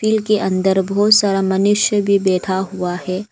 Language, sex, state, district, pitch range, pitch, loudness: Hindi, female, Arunachal Pradesh, Lower Dibang Valley, 190-205 Hz, 195 Hz, -16 LUFS